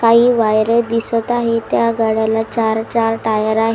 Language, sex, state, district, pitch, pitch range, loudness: Marathi, female, Maharashtra, Washim, 225 Hz, 220-230 Hz, -15 LUFS